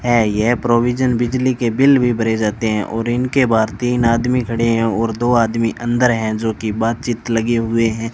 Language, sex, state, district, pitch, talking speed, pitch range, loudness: Hindi, male, Rajasthan, Bikaner, 115 Hz, 205 wpm, 115-120 Hz, -17 LUFS